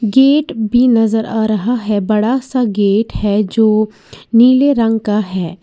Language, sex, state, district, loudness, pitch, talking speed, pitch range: Hindi, female, Uttar Pradesh, Lalitpur, -13 LUFS, 220 Hz, 160 wpm, 210-245 Hz